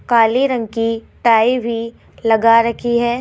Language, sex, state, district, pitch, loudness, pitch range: Hindi, female, Rajasthan, Jaipur, 230 Hz, -16 LUFS, 230-240 Hz